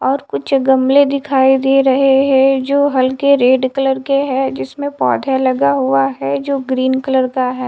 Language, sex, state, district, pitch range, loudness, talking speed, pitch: Hindi, female, Haryana, Charkhi Dadri, 260-275 Hz, -14 LUFS, 180 wpm, 265 Hz